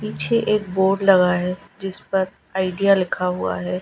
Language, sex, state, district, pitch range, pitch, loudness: Hindi, female, Gujarat, Gandhinagar, 180-195 Hz, 190 Hz, -20 LUFS